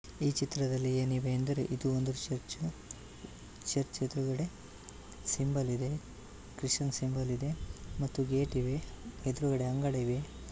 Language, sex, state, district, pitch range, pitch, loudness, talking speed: Kannada, male, Karnataka, Bellary, 130-140 Hz, 130 Hz, -35 LUFS, 115 wpm